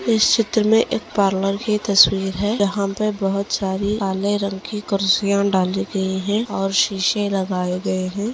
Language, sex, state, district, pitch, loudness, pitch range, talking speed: Hindi, female, Maharashtra, Dhule, 200 Hz, -19 LUFS, 195-210 Hz, 180 wpm